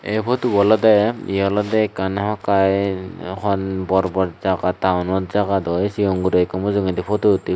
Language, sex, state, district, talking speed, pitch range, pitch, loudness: Chakma, male, Tripura, Dhalai, 165 wpm, 95-105 Hz, 100 Hz, -19 LUFS